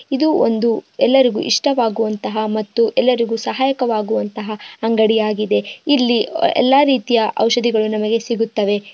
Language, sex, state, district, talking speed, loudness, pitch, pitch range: Kannada, female, Karnataka, Bijapur, 100 wpm, -17 LUFS, 230 Hz, 215-260 Hz